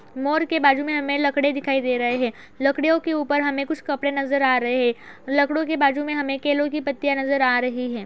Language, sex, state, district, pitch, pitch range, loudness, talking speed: Hindi, female, Uttar Pradesh, Etah, 280 Hz, 265-290 Hz, -21 LUFS, 240 wpm